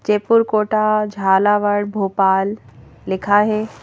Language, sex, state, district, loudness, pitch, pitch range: Hindi, female, Madhya Pradesh, Bhopal, -17 LUFS, 205 Hz, 195-215 Hz